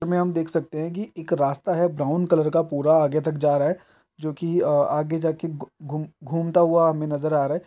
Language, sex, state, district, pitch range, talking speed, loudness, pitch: Hindi, male, Chhattisgarh, Bilaspur, 150-170 Hz, 225 wpm, -23 LUFS, 160 Hz